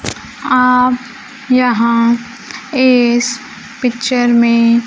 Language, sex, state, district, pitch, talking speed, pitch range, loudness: Hindi, female, Bihar, Kaimur, 245 Hz, 60 wpm, 235-255 Hz, -13 LUFS